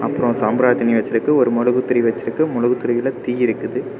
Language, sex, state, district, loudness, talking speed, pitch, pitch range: Tamil, male, Tamil Nadu, Kanyakumari, -18 LUFS, 195 wpm, 120 Hz, 120-125 Hz